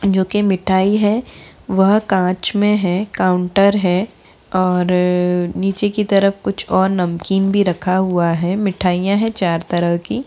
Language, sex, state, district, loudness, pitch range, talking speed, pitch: Hindi, female, Bihar, Gaya, -16 LUFS, 180-200 Hz, 165 wpm, 190 Hz